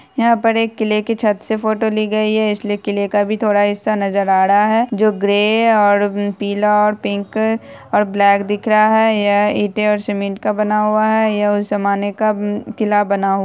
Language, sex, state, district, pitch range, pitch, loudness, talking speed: Hindi, female, Bihar, Saharsa, 205-215 Hz, 210 Hz, -16 LUFS, 215 wpm